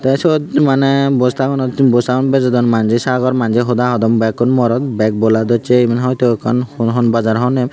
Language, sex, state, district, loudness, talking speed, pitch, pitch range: Chakma, male, Tripura, Unakoti, -14 LUFS, 195 wpm, 125 Hz, 115-130 Hz